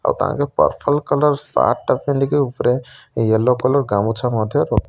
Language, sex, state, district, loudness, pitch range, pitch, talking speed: Odia, male, Odisha, Malkangiri, -18 LUFS, 120-145 Hz, 135 Hz, 185 wpm